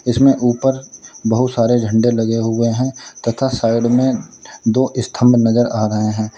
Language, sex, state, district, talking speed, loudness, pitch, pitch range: Hindi, male, Uttar Pradesh, Lalitpur, 160 wpm, -16 LUFS, 120 Hz, 115-125 Hz